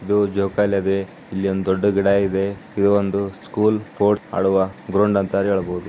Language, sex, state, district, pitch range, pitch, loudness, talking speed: Kannada, male, Karnataka, Bijapur, 95-100 Hz, 100 Hz, -20 LUFS, 165 wpm